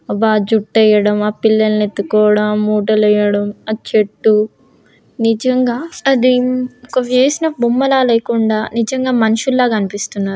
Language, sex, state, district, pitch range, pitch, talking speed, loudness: Telugu, female, Andhra Pradesh, Guntur, 210-250 Hz, 220 Hz, 120 wpm, -14 LUFS